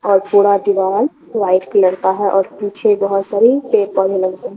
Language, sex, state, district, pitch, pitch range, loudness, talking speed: Hindi, female, Bihar, Katihar, 200 Hz, 190-205 Hz, -15 LUFS, 195 wpm